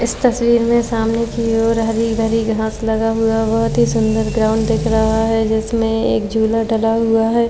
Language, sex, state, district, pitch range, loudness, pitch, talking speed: Hindi, female, Uttar Pradesh, Jyotiba Phule Nagar, 220-230 Hz, -16 LUFS, 225 Hz, 190 wpm